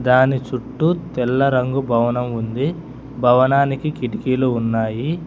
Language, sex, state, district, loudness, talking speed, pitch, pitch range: Telugu, male, Telangana, Hyderabad, -19 LUFS, 100 wpm, 130 Hz, 125-140 Hz